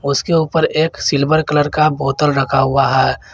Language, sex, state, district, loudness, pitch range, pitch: Hindi, male, Jharkhand, Garhwa, -15 LUFS, 135-155 Hz, 150 Hz